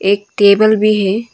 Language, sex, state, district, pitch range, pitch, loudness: Hindi, female, Arunachal Pradesh, Longding, 200-215 Hz, 205 Hz, -12 LUFS